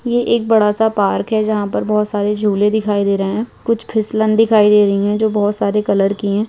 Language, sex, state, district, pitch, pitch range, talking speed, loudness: Hindi, male, Bihar, Muzaffarpur, 210 Hz, 205-220 Hz, 250 wpm, -15 LUFS